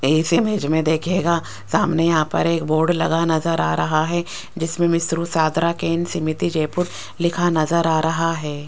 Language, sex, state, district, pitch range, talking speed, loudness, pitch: Hindi, female, Rajasthan, Jaipur, 160-170 Hz, 175 wpm, -20 LUFS, 165 Hz